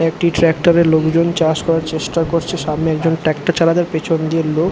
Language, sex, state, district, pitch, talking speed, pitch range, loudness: Bengali, male, West Bengal, Jhargram, 165 Hz, 190 wpm, 160-170 Hz, -16 LUFS